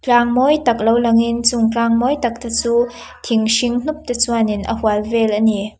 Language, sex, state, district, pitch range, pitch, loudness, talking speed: Mizo, female, Mizoram, Aizawl, 225-245 Hz, 235 Hz, -16 LUFS, 205 wpm